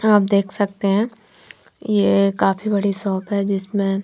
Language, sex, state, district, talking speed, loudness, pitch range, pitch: Hindi, female, Bihar, Patna, 150 wpm, -19 LUFS, 190-205 Hz, 200 Hz